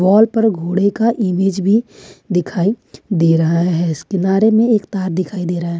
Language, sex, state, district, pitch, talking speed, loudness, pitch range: Hindi, female, Jharkhand, Ranchi, 190 Hz, 195 wpm, -16 LUFS, 175-210 Hz